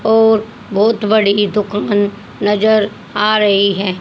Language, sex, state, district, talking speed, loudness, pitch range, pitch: Hindi, female, Haryana, Rohtak, 120 wpm, -14 LUFS, 205-215 Hz, 210 Hz